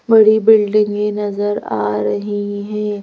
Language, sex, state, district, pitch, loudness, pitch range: Hindi, female, Madhya Pradesh, Bhopal, 205 Hz, -16 LUFS, 205-210 Hz